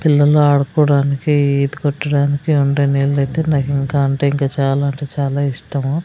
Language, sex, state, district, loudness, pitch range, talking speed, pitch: Telugu, female, Andhra Pradesh, Sri Satya Sai, -16 LUFS, 140-145 Hz, 130 wpm, 140 Hz